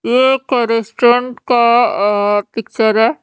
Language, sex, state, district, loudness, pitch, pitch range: Hindi, female, Haryana, Charkhi Dadri, -13 LUFS, 235 Hz, 220-245 Hz